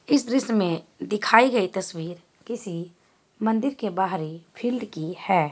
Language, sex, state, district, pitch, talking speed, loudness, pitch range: Hindi, female, Bihar, Gaya, 190 Hz, 140 wpm, -25 LUFS, 170-230 Hz